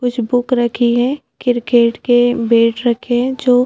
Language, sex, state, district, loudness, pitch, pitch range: Hindi, female, Chhattisgarh, Jashpur, -15 LUFS, 245 Hz, 235-250 Hz